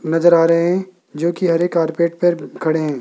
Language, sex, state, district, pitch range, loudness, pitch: Hindi, male, Rajasthan, Jaipur, 165-175 Hz, -17 LUFS, 170 Hz